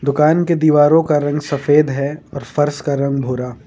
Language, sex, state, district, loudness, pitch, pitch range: Hindi, male, Jharkhand, Ranchi, -16 LUFS, 145 Hz, 140-150 Hz